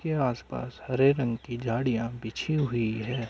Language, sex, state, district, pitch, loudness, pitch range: Hindi, male, Uttar Pradesh, Varanasi, 120 Hz, -29 LUFS, 115-135 Hz